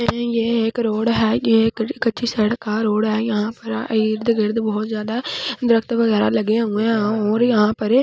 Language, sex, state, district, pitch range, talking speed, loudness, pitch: Hindi, female, Delhi, New Delhi, 215-230 Hz, 170 wpm, -19 LUFS, 225 Hz